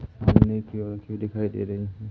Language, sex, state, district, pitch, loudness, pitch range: Hindi, male, Madhya Pradesh, Umaria, 105 Hz, -25 LUFS, 105-110 Hz